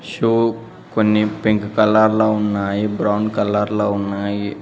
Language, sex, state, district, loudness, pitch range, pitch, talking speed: Telugu, male, Telangana, Mahabubabad, -18 LUFS, 105-110 Hz, 105 Hz, 130 wpm